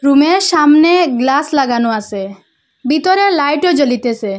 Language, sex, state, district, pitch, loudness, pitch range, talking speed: Bengali, female, Assam, Hailakandi, 280 Hz, -12 LUFS, 240-320 Hz, 135 wpm